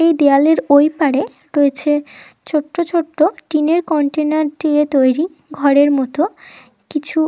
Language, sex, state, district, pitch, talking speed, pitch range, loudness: Bengali, female, West Bengal, Dakshin Dinajpur, 300 Hz, 115 wpm, 285-315 Hz, -16 LUFS